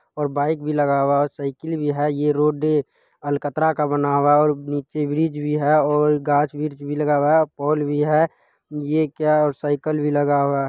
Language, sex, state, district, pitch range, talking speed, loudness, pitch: Hindi, male, Bihar, Purnia, 145-150 Hz, 220 wpm, -20 LUFS, 150 Hz